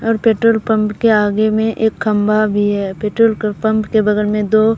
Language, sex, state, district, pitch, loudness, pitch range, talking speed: Hindi, female, Bihar, Katihar, 215 Hz, -15 LUFS, 210-220 Hz, 215 wpm